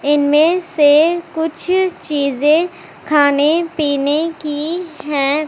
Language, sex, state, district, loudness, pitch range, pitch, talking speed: Hindi, female, Punjab, Pathankot, -15 LUFS, 290-335 Hz, 305 Hz, 90 wpm